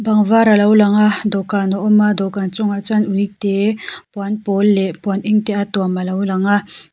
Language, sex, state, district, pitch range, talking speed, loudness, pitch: Mizo, female, Mizoram, Aizawl, 195-210 Hz, 225 wpm, -16 LUFS, 205 Hz